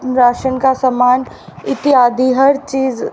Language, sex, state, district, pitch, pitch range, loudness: Hindi, female, Haryana, Rohtak, 260 Hz, 250-265 Hz, -13 LUFS